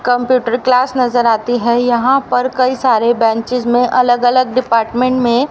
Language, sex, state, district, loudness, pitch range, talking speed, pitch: Hindi, female, Haryana, Rohtak, -13 LUFS, 240-255 Hz, 165 wpm, 245 Hz